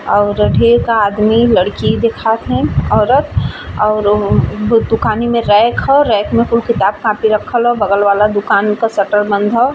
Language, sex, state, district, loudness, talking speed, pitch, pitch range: Bhojpuri, female, Bihar, East Champaran, -12 LUFS, 155 wpm, 215 Hz, 205-230 Hz